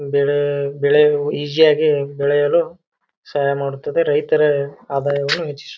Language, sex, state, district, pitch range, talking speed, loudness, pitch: Kannada, male, Karnataka, Bijapur, 140-150 Hz, 105 wpm, -17 LUFS, 145 Hz